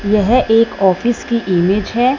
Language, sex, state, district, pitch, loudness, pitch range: Hindi, female, Punjab, Fazilka, 225 Hz, -14 LUFS, 200-240 Hz